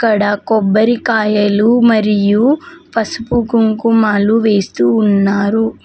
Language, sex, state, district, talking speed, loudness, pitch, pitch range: Telugu, female, Telangana, Mahabubabad, 70 wpm, -13 LUFS, 220 Hz, 205-230 Hz